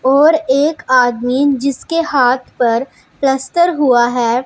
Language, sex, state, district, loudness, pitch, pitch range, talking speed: Hindi, female, Punjab, Pathankot, -14 LUFS, 265 Hz, 245-290 Hz, 120 wpm